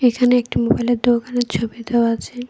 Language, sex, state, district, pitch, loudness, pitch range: Bengali, female, Tripura, West Tripura, 240 Hz, -18 LUFS, 235-245 Hz